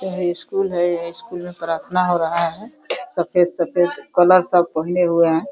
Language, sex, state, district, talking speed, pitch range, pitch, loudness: Hindi, female, Uttar Pradesh, Deoria, 185 wpm, 170-185 Hz, 175 Hz, -19 LUFS